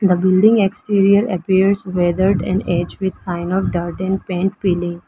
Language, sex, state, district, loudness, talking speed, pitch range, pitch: English, female, Arunachal Pradesh, Lower Dibang Valley, -17 LUFS, 165 wpm, 175-195 Hz, 190 Hz